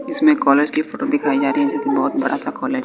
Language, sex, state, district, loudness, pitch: Hindi, male, Bihar, West Champaran, -18 LUFS, 255 Hz